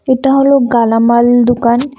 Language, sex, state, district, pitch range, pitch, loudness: Bengali, female, Assam, Kamrup Metropolitan, 235-270 Hz, 245 Hz, -10 LUFS